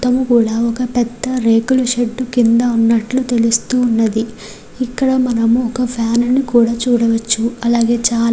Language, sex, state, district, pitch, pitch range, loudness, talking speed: Telugu, female, Andhra Pradesh, Srikakulam, 235 Hz, 230-250 Hz, -15 LUFS, 130 wpm